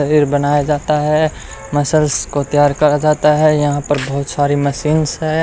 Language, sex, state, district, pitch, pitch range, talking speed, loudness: Hindi, male, Haryana, Rohtak, 145 Hz, 145-150 Hz, 175 wpm, -15 LUFS